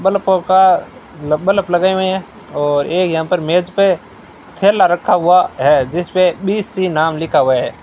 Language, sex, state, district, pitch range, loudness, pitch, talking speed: Hindi, male, Rajasthan, Bikaner, 165-190 Hz, -14 LUFS, 180 Hz, 170 wpm